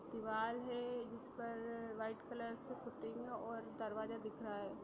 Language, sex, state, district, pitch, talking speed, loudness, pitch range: Hindi, female, Bihar, Sitamarhi, 230 Hz, 175 wpm, -46 LUFS, 220-240 Hz